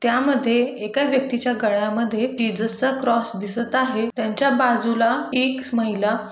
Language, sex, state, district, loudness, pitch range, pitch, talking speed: Marathi, female, Maharashtra, Aurangabad, -21 LUFS, 225-255 Hz, 235 Hz, 135 wpm